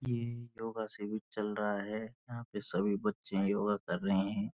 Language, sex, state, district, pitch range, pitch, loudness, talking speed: Hindi, male, Uttarakhand, Uttarkashi, 105-120 Hz, 105 Hz, -36 LUFS, 185 wpm